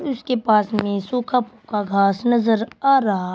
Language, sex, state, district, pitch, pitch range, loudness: Hindi, female, Uttar Pradesh, Shamli, 225 Hz, 205-250 Hz, -20 LUFS